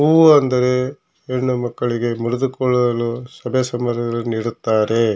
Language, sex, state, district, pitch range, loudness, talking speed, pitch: Kannada, male, Karnataka, Shimoga, 115-130 Hz, -18 LUFS, 95 wpm, 120 Hz